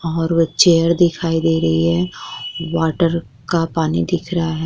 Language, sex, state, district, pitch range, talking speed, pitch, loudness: Hindi, female, Uttar Pradesh, Jyotiba Phule Nagar, 160-170 Hz, 165 wpm, 165 Hz, -17 LUFS